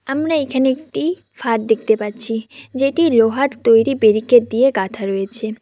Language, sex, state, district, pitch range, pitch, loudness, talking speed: Bengali, female, West Bengal, Cooch Behar, 220-270 Hz, 235 Hz, -17 LUFS, 140 wpm